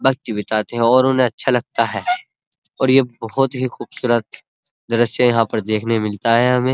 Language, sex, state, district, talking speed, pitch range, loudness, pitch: Hindi, male, Uttar Pradesh, Muzaffarnagar, 180 wpm, 115-130 Hz, -18 LUFS, 120 Hz